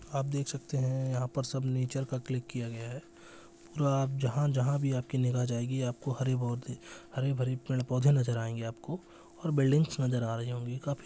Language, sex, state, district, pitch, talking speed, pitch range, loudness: Hindi, male, Bihar, Jahanabad, 130 Hz, 195 wpm, 125-140 Hz, -32 LUFS